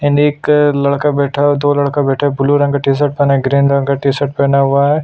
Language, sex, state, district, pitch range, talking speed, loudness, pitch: Hindi, male, Chhattisgarh, Sukma, 140-145 Hz, 260 wpm, -13 LUFS, 140 Hz